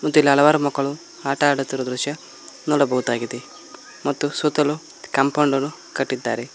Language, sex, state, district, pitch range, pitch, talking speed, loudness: Kannada, male, Karnataka, Koppal, 135-150 Hz, 145 Hz, 110 wpm, -21 LUFS